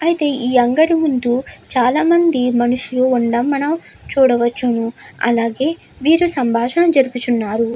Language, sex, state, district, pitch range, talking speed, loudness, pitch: Telugu, female, Andhra Pradesh, Krishna, 240-305 Hz, 110 wpm, -16 LUFS, 255 Hz